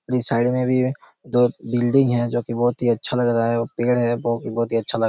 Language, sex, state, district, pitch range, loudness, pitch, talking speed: Hindi, male, Chhattisgarh, Raigarh, 115-125 Hz, -21 LUFS, 120 Hz, 320 wpm